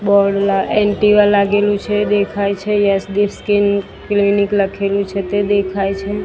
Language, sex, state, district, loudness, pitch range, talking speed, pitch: Gujarati, female, Gujarat, Gandhinagar, -15 LUFS, 200-205 Hz, 105 wpm, 200 Hz